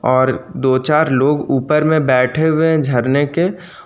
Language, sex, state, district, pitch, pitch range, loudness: Hindi, male, Jharkhand, Ranchi, 145 Hz, 130-155 Hz, -15 LUFS